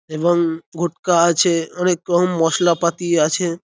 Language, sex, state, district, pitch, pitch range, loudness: Bengali, male, West Bengal, North 24 Parganas, 170 Hz, 165-175 Hz, -18 LUFS